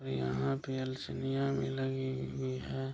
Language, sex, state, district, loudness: Hindi, male, Bihar, Kishanganj, -36 LUFS